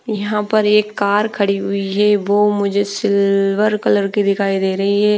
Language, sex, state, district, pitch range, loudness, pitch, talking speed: Hindi, female, Bihar, Patna, 200-210 Hz, -16 LUFS, 205 Hz, 195 wpm